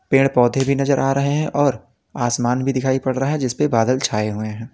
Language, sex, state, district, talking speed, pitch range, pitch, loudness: Hindi, male, Uttar Pradesh, Lalitpur, 255 wpm, 120-140 Hz, 130 Hz, -19 LUFS